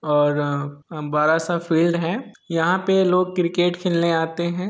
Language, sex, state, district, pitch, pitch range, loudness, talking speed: Hindi, male, Bihar, Sitamarhi, 170 Hz, 155-180 Hz, -21 LUFS, 155 wpm